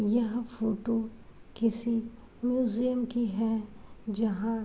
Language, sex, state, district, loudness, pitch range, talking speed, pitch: Hindi, female, Uttar Pradesh, Varanasi, -31 LUFS, 220-235 Hz, 105 wpm, 230 Hz